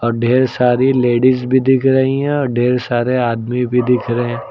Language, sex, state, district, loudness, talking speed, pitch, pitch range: Hindi, male, Uttar Pradesh, Lucknow, -15 LUFS, 185 wpm, 125 Hz, 120-130 Hz